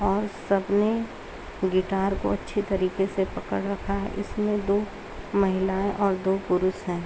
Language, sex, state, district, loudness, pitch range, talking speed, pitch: Hindi, female, Uttar Pradesh, Varanasi, -26 LUFS, 190-200 Hz, 155 wpm, 195 Hz